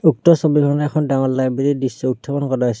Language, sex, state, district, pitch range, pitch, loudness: Assamese, male, Assam, Kamrup Metropolitan, 130-150 Hz, 140 Hz, -17 LUFS